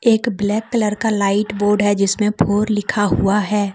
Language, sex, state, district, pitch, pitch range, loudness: Hindi, female, Jharkhand, Deoghar, 205 Hz, 205-215 Hz, -17 LUFS